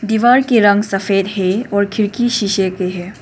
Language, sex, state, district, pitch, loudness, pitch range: Hindi, female, Arunachal Pradesh, Papum Pare, 205 Hz, -15 LUFS, 195-220 Hz